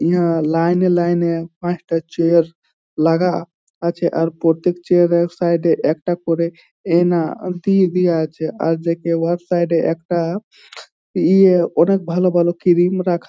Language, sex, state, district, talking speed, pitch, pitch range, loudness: Bengali, male, West Bengal, Jhargram, 150 wpm, 170 Hz, 165-175 Hz, -17 LUFS